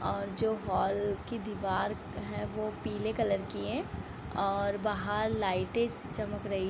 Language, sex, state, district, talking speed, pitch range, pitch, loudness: Hindi, female, Bihar, Sitamarhi, 145 wpm, 200-220 Hz, 210 Hz, -33 LUFS